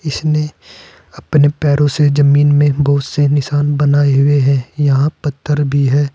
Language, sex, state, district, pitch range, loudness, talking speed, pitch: Hindi, male, Uttar Pradesh, Saharanpur, 140-145 Hz, -13 LUFS, 155 wpm, 145 Hz